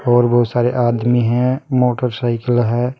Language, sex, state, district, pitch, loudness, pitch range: Hindi, male, Uttar Pradesh, Saharanpur, 120 Hz, -16 LUFS, 120-125 Hz